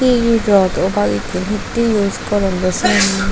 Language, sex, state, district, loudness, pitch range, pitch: Chakma, female, Tripura, Dhalai, -15 LUFS, 185-225 Hz, 200 Hz